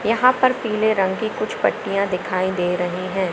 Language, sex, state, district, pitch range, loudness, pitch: Hindi, female, Madhya Pradesh, Katni, 185-220 Hz, -20 LUFS, 195 Hz